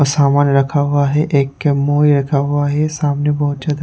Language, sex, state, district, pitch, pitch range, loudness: Hindi, male, Haryana, Charkhi Dadri, 145 Hz, 140-150 Hz, -15 LUFS